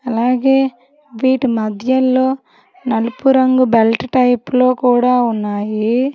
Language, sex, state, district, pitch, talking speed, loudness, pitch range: Telugu, female, Telangana, Hyderabad, 255 Hz, 100 wpm, -15 LUFS, 230-260 Hz